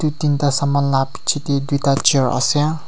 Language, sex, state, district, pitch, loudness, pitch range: Nagamese, male, Nagaland, Kohima, 140 Hz, -17 LUFS, 135-150 Hz